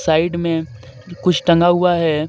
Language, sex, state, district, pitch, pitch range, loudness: Hindi, male, Jharkhand, Deoghar, 170 Hz, 160-175 Hz, -16 LUFS